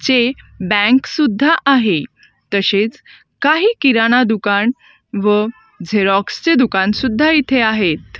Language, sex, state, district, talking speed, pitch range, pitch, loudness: Marathi, female, Maharashtra, Gondia, 110 wpm, 205-275 Hz, 240 Hz, -14 LUFS